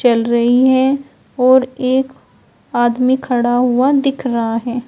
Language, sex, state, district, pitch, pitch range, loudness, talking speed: Hindi, female, Uttar Pradesh, Shamli, 255 Hz, 240-260 Hz, -15 LUFS, 135 wpm